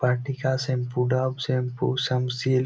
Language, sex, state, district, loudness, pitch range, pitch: Bengali, male, West Bengal, Jalpaiguri, -25 LUFS, 125-130 Hz, 130 Hz